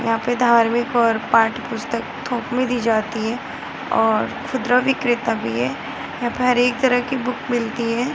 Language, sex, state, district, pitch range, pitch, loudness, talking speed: Hindi, female, Bihar, Muzaffarpur, 225-250 Hz, 240 Hz, -20 LUFS, 185 wpm